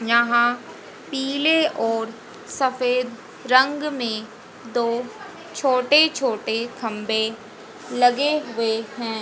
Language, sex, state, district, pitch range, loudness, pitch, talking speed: Hindi, female, Haryana, Jhajjar, 225-265 Hz, -21 LUFS, 240 Hz, 85 wpm